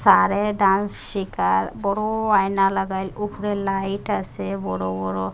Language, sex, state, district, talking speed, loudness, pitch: Bengali, female, Assam, Hailakandi, 125 wpm, -22 LUFS, 195 Hz